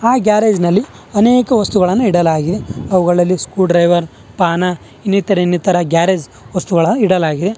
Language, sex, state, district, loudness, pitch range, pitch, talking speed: Kannada, male, Karnataka, Bangalore, -14 LUFS, 175-205 Hz, 180 Hz, 120 wpm